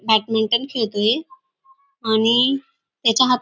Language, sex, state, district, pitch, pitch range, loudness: Marathi, female, Maharashtra, Dhule, 245 Hz, 225-320 Hz, -19 LUFS